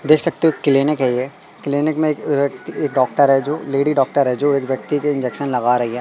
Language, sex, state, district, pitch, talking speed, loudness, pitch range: Hindi, male, Madhya Pradesh, Katni, 140 Hz, 250 wpm, -18 LUFS, 130-150 Hz